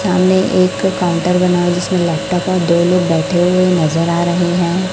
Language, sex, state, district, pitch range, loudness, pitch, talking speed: Hindi, male, Chhattisgarh, Raipur, 175-185 Hz, -14 LUFS, 180 Hz, 195 wpm